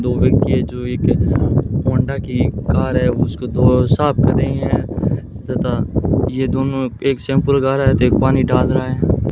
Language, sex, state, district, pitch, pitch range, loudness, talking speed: Hindi, male, Rajasthan, Bikaner, 130 Hz, 125-135 Hz, -17 LUFS, 180 wpm